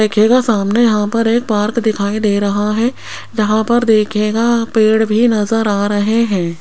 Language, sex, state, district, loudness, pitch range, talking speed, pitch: Hindi, female, Rajasthan, Jaipur, -14 LUFS, 210-230 Hz, 170 wpm, 215 Hz